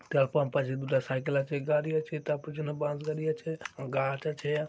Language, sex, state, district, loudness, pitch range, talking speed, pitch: Bengali, male, West Bengal, Dakshin Dinajpur, -31 LUFS, 135-155 Hz, 190 wpm, 150 Hz